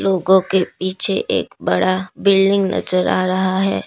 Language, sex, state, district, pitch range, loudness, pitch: Hindi, female, Assam, Kamrup Metropolitan, 185-195 Hz, -16 LUFS, 190 Hz